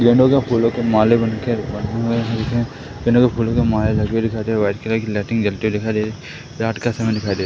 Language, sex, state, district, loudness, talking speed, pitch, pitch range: Hindi, male, Madhya Pradesh, Katni, -19 LUFS, 120 wpm, 115 Hz, 110-120 Hz